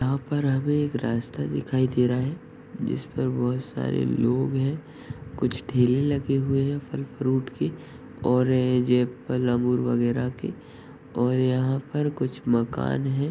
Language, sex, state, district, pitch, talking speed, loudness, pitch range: Hindi, male, Uttar Pradesh, Ghazipur, 130 Hz, 160 wpm, -25 LUFS, 125-135 Hz